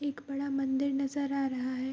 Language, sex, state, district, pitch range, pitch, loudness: Hindi, female, Bihar, Vaishali, 265-280 Hz, 275 Hz, -32 LUFS